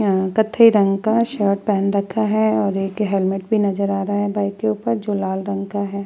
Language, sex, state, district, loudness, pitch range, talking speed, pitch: Hindi, female, Uttar Pradesh, Muzaffarnagar, -19 LUFS, 195-210 Hz, 225 wpm, 200 Hz